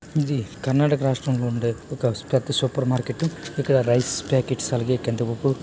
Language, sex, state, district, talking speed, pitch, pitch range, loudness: Telugu, male, Karnataka, Dharwad, 150 wpm, 130 Hz, 125-140 Hz, -23 LUFS